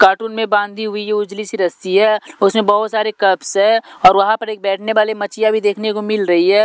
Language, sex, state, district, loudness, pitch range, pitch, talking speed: Hindi, male, Punjab, Pathankot, -15 LUFS, 200-215 Hz, 210 Hz, 235 wpm